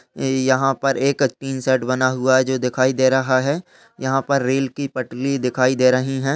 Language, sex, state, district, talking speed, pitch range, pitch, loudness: Hindi, male, Uttar Pradesh, Muzaffarnagar, 210 wpm, 130-135 Hz, 130 Hz, -19 LUFS